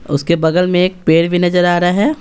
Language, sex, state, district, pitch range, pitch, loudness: Hindi, male, Bihar, Patna, 165-180 Hz, 175 Hz, -13 LUFS